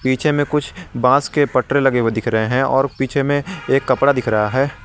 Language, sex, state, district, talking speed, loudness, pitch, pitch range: Hindi, male, Jharkhand, Garhwa, 235 wpm, -17 LUFS, 135 Hz, 125-140 Hz